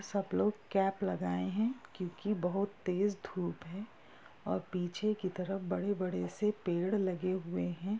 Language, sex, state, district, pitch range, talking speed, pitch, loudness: Hindi, female, Bihar, Gopalganj, 180-205 Hz, 150 wpm, 190 Hz, -36 LUFS